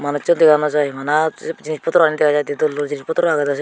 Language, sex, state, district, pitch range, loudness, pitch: Chakma, female, Tripura, Unakoti, 145-155 Hz, -17 LUFS, 150 Hz